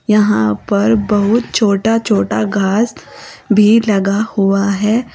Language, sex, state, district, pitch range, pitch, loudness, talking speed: Hindi, female, Uttar Pradesh, Saharanpur, 195-225 Hz, 210 Hz, -14 LUFS, 115 wpm